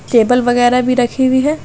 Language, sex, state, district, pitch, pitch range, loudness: Hindi, female, Bihar, East Champaran, 250 Hz, 245-260 Hz, -13 LUFS